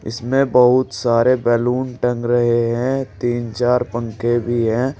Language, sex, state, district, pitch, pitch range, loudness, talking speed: Hindi, male, Uttar Pradesh, Saharanpur, 120 Hz, 120-125 Hz, -18 LUFS, 145 wpm